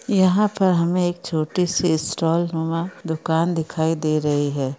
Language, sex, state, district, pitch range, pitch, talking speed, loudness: Hindi, female, Rajasthan, Churu, 160-180 Hz, 165 Hz, 165 wpm, -21 LUFS